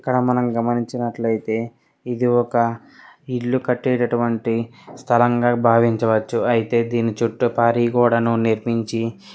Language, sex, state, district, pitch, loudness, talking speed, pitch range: Telugu, male, Telangana, Karimnagar, 120 Hz, -20 LUFS, 105 wpm, 115-120 Hz